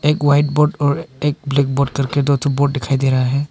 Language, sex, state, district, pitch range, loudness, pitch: Hindi, male, Arunachal Pradesh, Papum Pare, 135-145 Hz, -17 LUFS, 140 Hz